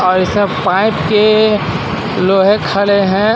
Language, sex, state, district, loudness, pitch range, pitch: Hindi, male, Jharkhand, Ranchi, -12 LUFS, 185-210 Hz, 195 Hz